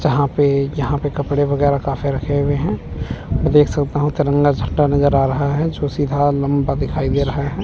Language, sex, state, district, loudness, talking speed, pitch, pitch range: Hindi, male, Chandigarh, Chandigarh, -18 LUFS, 205 wpm, 145 Hz, 140-145 Hz